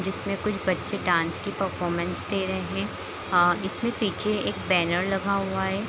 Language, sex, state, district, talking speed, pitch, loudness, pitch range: Hindi, female, Bihar, Kishanganj, 165 wpm, 195 Hz, -26 LUFS, 180-200 Hz